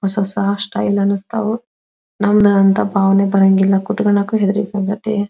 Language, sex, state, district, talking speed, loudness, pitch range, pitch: Kannada, female, Karnataka, Belgaum, 135 wpm, -15 LUFS, 195-210 Hz, 200 Hz